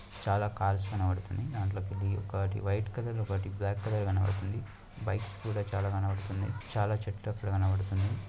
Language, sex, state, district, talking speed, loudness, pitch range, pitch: Telugu, male, Andhra Pradesh, Anantapur, 145 wpm, -33 LUFS, 95-105 Hz, 100 Hz